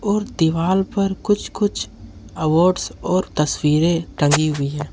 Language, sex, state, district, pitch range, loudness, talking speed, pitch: Hindi, male, Jharkhand, Ranchi, 145-190 Hz, -19 LUFS, 135 wpm, 165 Hz